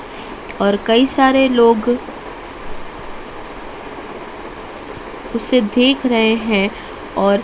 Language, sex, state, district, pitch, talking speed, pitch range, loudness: Hindi, female, Madhya Pradesh, Dhar, 235 Hz, 70 wpm, 220-255 Hz, -15 LUFS